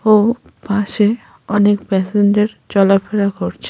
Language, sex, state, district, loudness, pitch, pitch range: Bengali, female, West Bengal, Jhargram, -15 LUFS, 205 Hz, 200-210 Hz